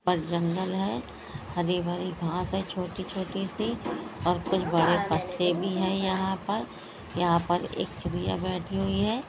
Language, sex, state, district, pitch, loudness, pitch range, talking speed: Hindi, female, Bihar, Jamui, 185 Hz, -29 LUFS, 175-195 Hz, 150 wpm